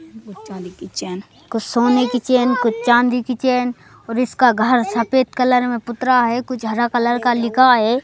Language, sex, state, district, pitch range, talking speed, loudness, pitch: Hindi, male, Madhya Pradesh, Bhopal, 230-250 Hz, 185 wpm, -17 LUFS, 245 Hz